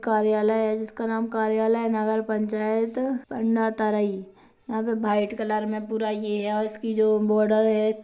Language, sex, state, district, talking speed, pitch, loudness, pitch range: Hindi, female, Chhattisgarh, Kabirdham, 155 wpm, 220 Hz, -25 LUFS, 215-225 Hz